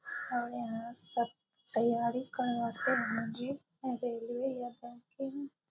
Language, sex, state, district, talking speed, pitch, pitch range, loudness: Maithili, female, Bihar, Muzaffarpur, 105 wpm, 240 Hz, 235-260 Hz, -36 LUFS